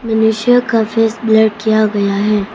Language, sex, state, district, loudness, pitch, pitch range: Hindi, female, Arunachal Pradesh, Papum Pare, -13 LUFS, 220 Hz, 210-225 Hz